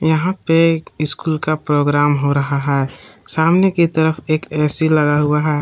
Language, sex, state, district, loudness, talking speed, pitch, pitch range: Hindi, male, Jharkhand, Palamu, -16 LUFS, 180 wpm, 155 Hz, 145-160 Hz